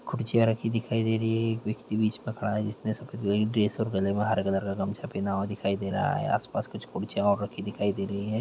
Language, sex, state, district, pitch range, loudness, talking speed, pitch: Hindi, male, Bihar, Muzaffarpur, 100-110 Hz, -29 LUFS, 265 wpm, 105 Hz